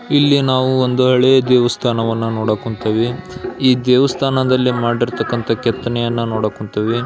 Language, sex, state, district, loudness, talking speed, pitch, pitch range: Kannada, male, Karnataka, Belgaum, -16 LUFS, 120 wpm, 120 Hz, 115-130 Hz